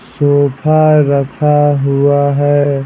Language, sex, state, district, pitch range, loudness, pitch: Hindi, male, Bihar, Patna, 140-145 Hz, -11 LUFS, 145 Hz